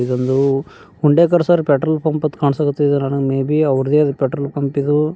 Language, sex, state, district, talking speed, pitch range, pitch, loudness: Kannada, male, Karnataka, Bijapur, 185 wpm, 135-155 Hz, 145 Hz, -16 LUFS